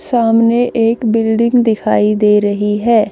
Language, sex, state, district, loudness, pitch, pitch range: Hindi, female, Haryana, Charkhi Dadri, -13 LUFS, 225 Hz, 210-235 Hz